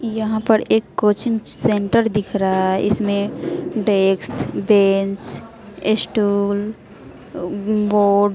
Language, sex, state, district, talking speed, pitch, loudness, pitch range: Hindi, female, Bihar, West Champaran, 110 wpm, 210 Hz, -19 LUFS, 200-220 Hz